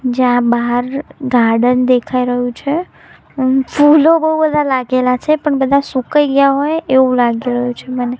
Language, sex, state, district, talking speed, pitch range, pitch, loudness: Gujarati, female, Gujarat, Gandhinagar, 160 wpm, 245-285 Hz, 260 Hz, -14 LUFS